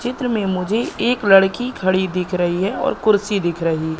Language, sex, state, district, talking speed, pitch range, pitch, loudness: Hindi, male, Madhya Pradesh, Katni, 195 wpm, 180-220 Hz, 195 Hz, -18 LUFS